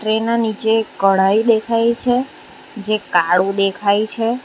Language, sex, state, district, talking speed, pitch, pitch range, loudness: Gujarati, female, Gujarat, Valsad, 135 wpm, 220 Hz, 200-230 Hz, -16 LUFS